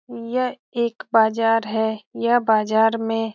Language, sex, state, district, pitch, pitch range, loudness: Hindi, female, Bihar, Saran, 225 Hz, 220-235 Hz, -21 LUFS